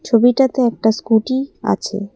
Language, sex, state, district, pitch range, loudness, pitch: Bengali, female, Assam, Kamrup Metropolitan, 220-260 Hz, -16 LUFS, 240 Hz